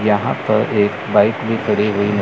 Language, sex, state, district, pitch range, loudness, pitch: Hindi, male, Chandigarh, Chandigarh, 105-110 Hz, -17 LUFS, 105 Hz